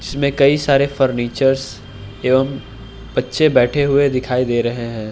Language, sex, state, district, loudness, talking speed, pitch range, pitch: Hindi, male, Uttar Pradesh, Hamirpur, -17 LUFS, 140 wpm, 120-140 Hz, 130 Hz